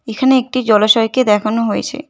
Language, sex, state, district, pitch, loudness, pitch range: Bengali, female, West Bengal, Cooch Behar, 230 Hz, -14 LUFS, 215-260 Hz